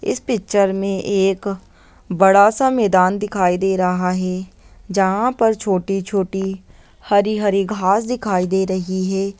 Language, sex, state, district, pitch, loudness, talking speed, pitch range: Hindi, female, Bihar, Lakhisarai, 195 Hz, -18 LUFS, 130 wpm, 185-205 Hz